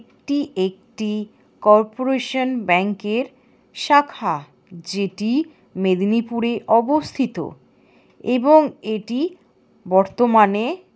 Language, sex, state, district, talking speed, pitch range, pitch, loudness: Bengali, female, West Bengal, Paschim Medinipur, 65 wpm, 205-265 Hz, 230 Hz, -20 LUFS